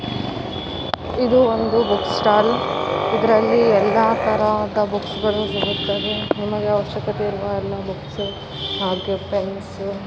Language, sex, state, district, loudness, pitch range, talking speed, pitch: Kannada, female, Karnataka, Raichur, -20 LUFS, 200-225 Hz, 100 wpm, 210 Hz